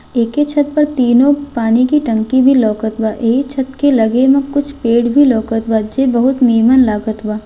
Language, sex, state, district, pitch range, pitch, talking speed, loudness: Bhojpuri, female, Bihar, Gopalganj, 225-275 Hz, 245 Hz, 200 wpm, -13 LUFS